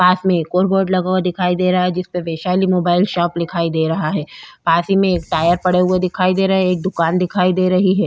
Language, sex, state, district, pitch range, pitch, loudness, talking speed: Hindi, female, Bihar, Vaishali, 175-185 Hz, 180 Hz, -17 LUFS, 255 wpm